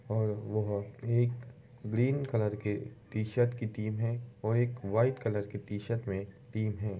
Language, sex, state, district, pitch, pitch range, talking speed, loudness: Hindi, male, Uttar Pradesh, Varanasi, 110 Hz, 105-120 Hz, 165 wpm, -33 LUFS